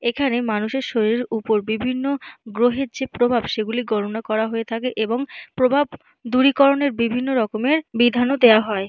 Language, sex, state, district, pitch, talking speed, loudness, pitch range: Bengali, female, Jharkhand, Jamtara, 240 Hz, 140 wpm, -20 LUFS, 220-265 Hz